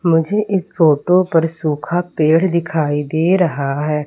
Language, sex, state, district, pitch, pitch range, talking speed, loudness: Hindi, female, Madhya Pradesh, Umaria, 165 Hz, 150-175 Hz, 145 wpm, -16 LUFS